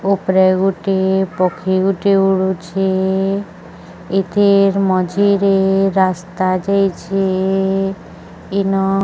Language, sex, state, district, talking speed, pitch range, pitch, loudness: Odia, female, Odisha, Sambalpur, 75 wpm, 190-195 Hz, 195 Hz, -16 LUFS